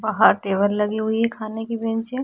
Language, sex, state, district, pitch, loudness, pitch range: Hindi, female, Goa, North and South Goa, 220 Hz, -21 LUFS, 210-225 Hz